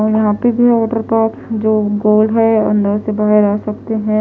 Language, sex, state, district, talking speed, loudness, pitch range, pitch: Hindi, female, Odisha, Khordha, 200 wpm, -14 LUFS, 210-225 Hz, 215 Hz